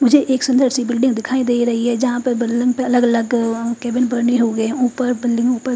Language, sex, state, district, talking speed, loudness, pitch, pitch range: Hindi, female, Haryana, Charkhi Dadri, 185 wpm, -17 LUFS, 245 Hz, 235-255 Hz